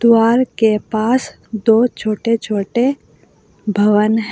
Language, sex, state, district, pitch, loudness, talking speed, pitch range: Hindi, female, Uttar Pradesh, Saharanpur, 225 Hz, -16 LUFS, 110 wpm, 215-235 Hz